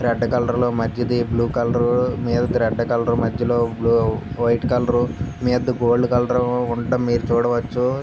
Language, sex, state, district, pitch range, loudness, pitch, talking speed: Telugu, male, Andhra Pradesh, Visakhapatnam, 120-125 Hz, -20 LUFS, 120 Hz, 135 wpm